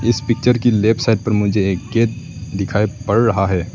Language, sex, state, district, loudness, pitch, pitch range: Hindi, male, Arunachal Pradesh, Lower Dibang Valley, -17 LUFS, 110 Hz, 100-115 Hz